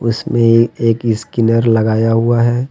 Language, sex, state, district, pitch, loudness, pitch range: Hindi, male, Jharkhand, Deoghar, 115 Hz, -13 LUFS, 115-120 Hz